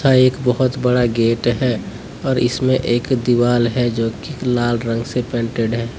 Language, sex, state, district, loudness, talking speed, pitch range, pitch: Hindi, male, Jharkhand, Deoghar, -18 LUFS, 170 wpm, 115-130 Hz, 120 Hz